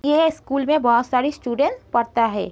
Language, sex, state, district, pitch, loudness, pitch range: Hindi, female, Uttar Pradesh, Gorakhpur, 260 Hz, -20 LUFS, 235-290 Hz